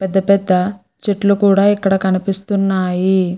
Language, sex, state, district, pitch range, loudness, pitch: Telugu, female, Andhra Pradesh, Guntur, 185-200 Hz, -15 LUFS, 195 Hz